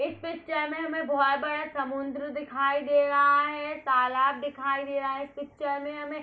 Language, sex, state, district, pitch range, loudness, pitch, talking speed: Hindi, female, Uttar Pradesh, Hamirpur, 275-300 Hz, -27 LUFS, 285 Hz, 190 wpm